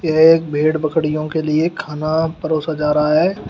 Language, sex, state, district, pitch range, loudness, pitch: Hindi, male, Uttar Pradesh, Shamli, 155-160 Hz, -17 LUFS, 155 Hz